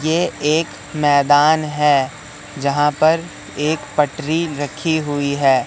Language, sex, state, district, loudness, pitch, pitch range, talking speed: Hindi, male, Madhya Pradesh, Katni, -17 LUFS, 150 Hz, 145-155 Hz, 115 wpm